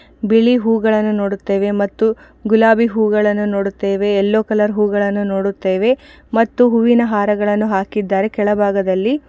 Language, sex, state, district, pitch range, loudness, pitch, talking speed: Kannada, female, Karnataka, Shimoga, 200-225 Hz, -16 LUFS, 210 Hz, 110 wpm